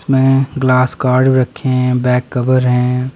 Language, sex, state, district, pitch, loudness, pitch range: Hindi, male, Himachal Pradesh, Shimla, 130 Hz, -13 LUFS, 125-130 Hz